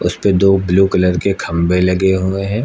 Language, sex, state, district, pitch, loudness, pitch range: Hindi, male, Uttar Pradesh, Lucknow, 95 Hz, -14 LUFS, 90-95 Hz